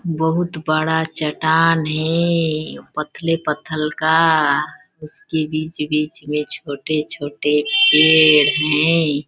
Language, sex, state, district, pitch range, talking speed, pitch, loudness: Hindi, female, Chhattisgarh, Balrampur, 150-160 Hz, 110 wpm, 155 Hz, -17 LUFS